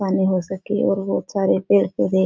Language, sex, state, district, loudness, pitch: Hindi, female, Bihar, Supaul, -20 LUFS, 185 Hz